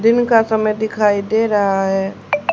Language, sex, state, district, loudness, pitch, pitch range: Hindi, female, Haryana, Charkhi Dadri, -16 LUFS, 220 Hz, 200-225 Hz